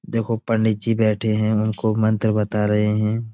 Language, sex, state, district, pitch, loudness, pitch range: Hindi, male, Uttar Pradesh, Budaun, 110 Hz, -20 LUFS, 105-110 Hz